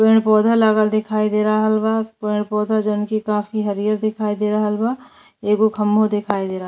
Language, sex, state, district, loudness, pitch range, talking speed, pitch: Bhojpuri, female, Uttar Pradesh, Deoria, -18 LUFS, 210-215 Hz, 205 wpm, 215 Hz